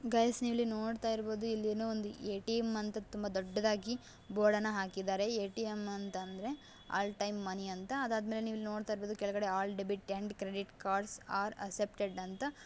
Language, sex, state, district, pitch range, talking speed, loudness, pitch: Kannada, female, Karnataka, Gulbarga, 200-220 Hz, 170 wpm, -37 LUFS, 210 Hz